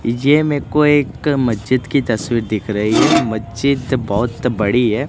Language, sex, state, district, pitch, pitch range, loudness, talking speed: Hindi, male, Gujarat, Gandhinagar, 125 Hz, 115-140 Hz, -16 LUFS, 165 wpm